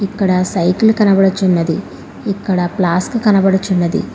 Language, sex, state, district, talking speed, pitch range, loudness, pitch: Telugu, female, Telangana, Hyderabad, 85 wpm, 180-200 Hz, -14 LUFS, 190 Hz